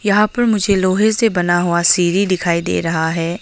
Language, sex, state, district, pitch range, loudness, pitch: Hindi, female, Arunachal Pradesh, Longding, 170-210 Hz, -15 LUFS, 185 Hz